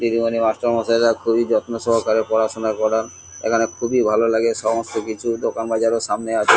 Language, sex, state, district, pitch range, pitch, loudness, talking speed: Bengali, male, West Bengal, Kolkata, 110-115 Hz, 115 Hz, -20 LUFS, 155 wpm